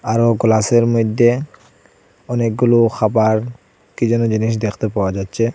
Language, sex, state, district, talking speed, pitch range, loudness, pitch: Bengali, male, Assam, Hailakandi, 120 wpm, 110-120 Hz, -16 LUFS, 115 Hz